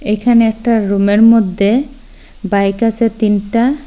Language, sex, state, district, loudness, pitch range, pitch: Bengali, female, Assam, Hailakandi, -12 LUFS, 205-235 Hz, 225 Hz